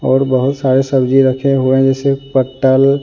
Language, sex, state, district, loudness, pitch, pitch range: Hindi, male, Jharkhand, Deoghar, -13 LUFS, 135 Hz, 130-135 Hz